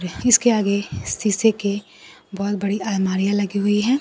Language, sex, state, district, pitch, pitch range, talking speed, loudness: Hindi, female, Bihar, Kaimur, 200 Hz, 200-215 Hz, 150 wpm, -20 LUFS